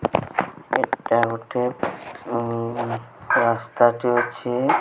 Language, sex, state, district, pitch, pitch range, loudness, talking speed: Odia, female, Odisha, Sambalpur, 120 Hz, 115-120 Hz, -23 LUFS, 60 wpm